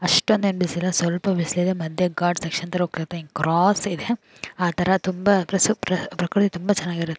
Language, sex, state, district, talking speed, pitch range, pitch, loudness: Kannada, female, Karnataka, Chamarajanagar, 150 wpm, 170-195 Hz, 180 Hz, -22 LUFS